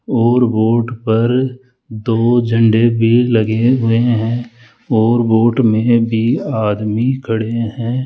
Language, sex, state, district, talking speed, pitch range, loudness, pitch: Hindi, male, Rajasthan, Jaipur, 120 wpm, 115-120 Hz, -14 LUFS, 115 Hz